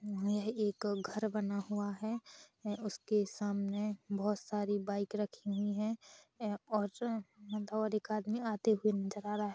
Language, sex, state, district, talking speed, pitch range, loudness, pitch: Hindi, female, Chhattisgarh, Rajnandgaon, 170 wpm, 205-215 Hz, -37 LUFS, 210 Hz